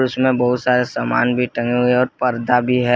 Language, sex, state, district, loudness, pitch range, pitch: Hindi, male, Jharkhand, Garhwa, -17 LUFS, 120-125 Hz, 125 Hz